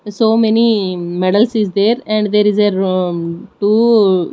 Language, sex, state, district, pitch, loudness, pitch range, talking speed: English, female, Odisha, Nuapada, 210 Hz, -14 LUFS, 185-220 Hz, 150 wpm